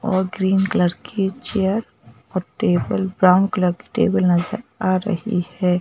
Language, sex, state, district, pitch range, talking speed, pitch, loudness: Hindi, female, Madhya Pradesh, Bhopal, 180-200 Hz, 155 wpm, 190 Hz, -20 LUFS